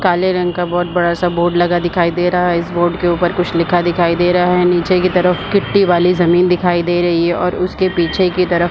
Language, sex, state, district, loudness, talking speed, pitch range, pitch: Hindi, female, Chhattisgarh, Bilaspur, -14 LUFS, 255 wpm, 175-180 Hz, 175 Hz